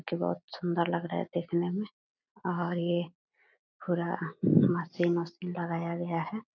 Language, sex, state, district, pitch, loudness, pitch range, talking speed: Hindi, female, Bihar, Purnia, 175 Hz, -31 LUFS, 170-175 Hz, 155 wpm